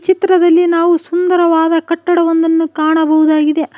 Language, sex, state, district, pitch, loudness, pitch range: Kannada, female, Karnataka, Koppal, 335 Hz, -12 LUFS, 320-345 Hz